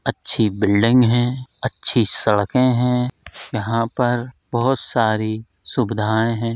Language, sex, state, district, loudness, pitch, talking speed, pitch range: Hindi, male, Uttar Pradesh, Hamirpur, -19 LUFS, 115 Hz, 110 wpm, 110-125 Hz